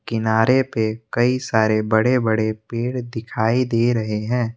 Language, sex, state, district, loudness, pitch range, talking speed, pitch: Hindi, male, Assam, Kamrup Metropolitan, -20 LUFS, 110-125 Hz, 145 wpm, 115 Hz